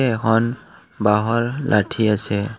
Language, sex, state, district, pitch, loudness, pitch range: Assamese, male, Assam, Kamrup Metropolitan, 110 Hz, -19 LUFS, 105-115 Hz